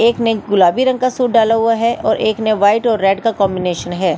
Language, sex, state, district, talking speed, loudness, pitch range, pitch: Hindi, female, Delhi, New Delhi, 260 wpm, -14 LUFS, 195-230 Hz, 220 Hz